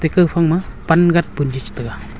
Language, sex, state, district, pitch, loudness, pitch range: Wancho, male, Arunachal Pradesh, Longding, 165 Hz, -16 LUFS, 135-170 Hz